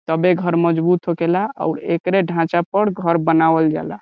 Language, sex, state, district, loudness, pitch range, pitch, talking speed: Bhojpuri, male, Bihar, Saran, -18 LUFS, 165-180 Hz, 170 Hz, 165 wpm